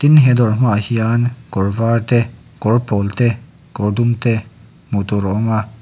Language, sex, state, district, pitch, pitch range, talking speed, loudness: Mizo, male, Mizoram, Aizawl, 115 Hz, 105-120 Hz, 185 wpm, -16 LUFS